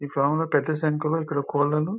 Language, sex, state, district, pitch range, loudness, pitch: Telugu, male, Telangana, Nalgonda, 145-155 Hz, -24 LUFS, 150 Hz